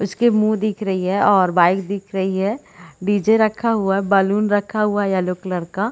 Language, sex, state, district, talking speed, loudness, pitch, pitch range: Hindi, female, Chhattisgarh, Bilaspur, 225 wpm, -18 LUFS, 200 Hz, 190-215 Hz